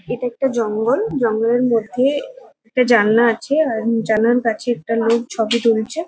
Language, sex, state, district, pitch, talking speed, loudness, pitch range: Bengali, female, West Bengal, Kolkata, 235 Hz, 150 wpm, -17 LUFS, 225-245 Hz